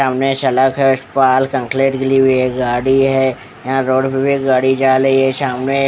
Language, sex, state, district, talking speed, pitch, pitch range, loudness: Hindi, male, Odisha, Khordha, 215 wpm, 135 Hz, 130-135 Hz, -14 LUFS